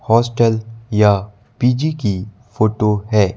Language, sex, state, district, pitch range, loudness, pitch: Hindi, male, Madhya Pradesh, Bhopal, 105-120 Hz, -17 LUFS, 110 Hz